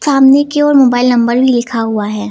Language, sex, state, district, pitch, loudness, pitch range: Hindi, female, Uttar Pradesh, Lucknow, 245 Hz, -10 LUFS, 235-275 Hz